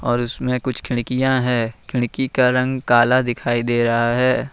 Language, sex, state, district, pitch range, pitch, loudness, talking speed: Hindi, male, Jharkhand, Ranchi, 120-130 Hz, 125 Hz, -19 LUFS, 170 wpm